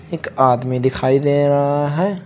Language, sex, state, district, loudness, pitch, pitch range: Hindi, male, Uttar Pradesh, Shamli, -17 LUFS, 145 Hz, 130-145 Hz